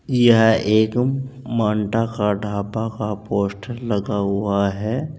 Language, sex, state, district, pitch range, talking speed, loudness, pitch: Hindi, male, Uttar Pradesh, Saharanpur, 105-120 Hz, 115 wpm, -20 LUFS, 110 Hz